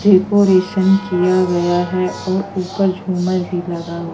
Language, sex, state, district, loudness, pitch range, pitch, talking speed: Hindi, female, Madhya Pradesh, Katni, -16 LUFS, 180-190 Hz, 185 Hz, 145 wpm